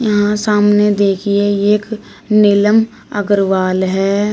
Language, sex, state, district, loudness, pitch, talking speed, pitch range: Hindi, female, Uttar Pradesh, Shamli, -13 LUFS, 205 Hz, 110 wpm, 200-210 Hz